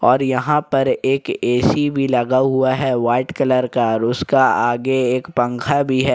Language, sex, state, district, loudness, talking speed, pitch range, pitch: Hindi, male, Jharkhand, Ranchi, -17 LUFS, 185 wpm, 125-135 Hz, 130 Hz